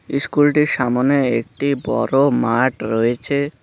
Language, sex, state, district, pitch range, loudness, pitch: Bengali, male, West Bengal, Cooch Behar, 120-140 Hz, -18 LUFS, 135 Hz